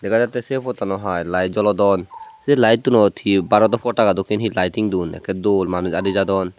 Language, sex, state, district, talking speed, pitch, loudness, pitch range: Chakma, male, Tripura, Dhalai, 210 wpm, 100 Hz, -18 LUFS, 95-115 Hz